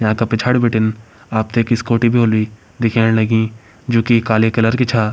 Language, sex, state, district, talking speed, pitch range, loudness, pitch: Garhwali, male, Uttarakhand, Uttarkashi, 185 wpm, 110-115 Hz, -16 LUFS, 115 Hz